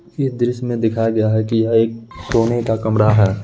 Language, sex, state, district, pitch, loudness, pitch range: Hindi, male, Bihar, Muzaffarpur, 115 Hz, -17 LUFS, 110-120 Hz